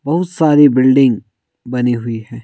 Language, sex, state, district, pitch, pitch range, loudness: Hindi, male, Himachal Pradesh, Shimla, 130 Hz, 120-150 Hz, -13 LUFS